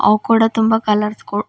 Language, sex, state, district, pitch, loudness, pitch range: Kannada, female, Karnataka, Bidar, 215 Hz, -16 LUFS, 210-225 Hz